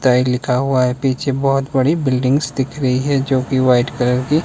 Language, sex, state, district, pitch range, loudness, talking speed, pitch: Hindi, male, Himachal Pradesh, Shimla, 125-135 Hz, -17 LUFS, 215 wpm, 130 Hz